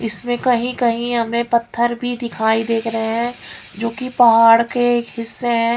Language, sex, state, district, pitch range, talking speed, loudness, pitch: Hindi, female, Haryana, Rohtak, 230-245 Hz, 165 wpm, -17 LUFS, 235 Hz